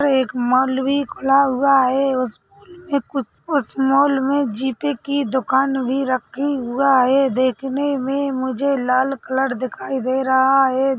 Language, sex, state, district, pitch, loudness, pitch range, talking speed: Hindi, female, Chhattisgarh, Rajnandgaon, 270 Hz, -19 LUFS, 260-280 Hz, 155 wpm